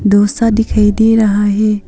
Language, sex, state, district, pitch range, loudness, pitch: Hindi, female, Arunachal Pradesh, Papum Pare, 205-220 Hz, -12 LUFS, 210 Hz